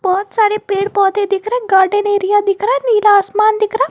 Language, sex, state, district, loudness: Hindi, female, Jharkhand, Garhwa, -14 LUFS